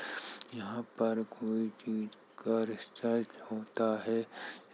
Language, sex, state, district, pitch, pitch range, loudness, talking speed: Hindi, male, Uttar Pradesh, Jalaun, 110 Hz, 110-115 Hz, -36 LUFS, 100 wpm